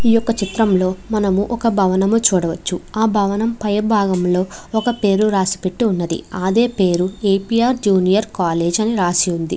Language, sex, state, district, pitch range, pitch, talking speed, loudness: Telugu, female, Andhra Pradesh, Chittoor, 185-220 Hz, 200 Hz, 155 wpm, -17 LUFS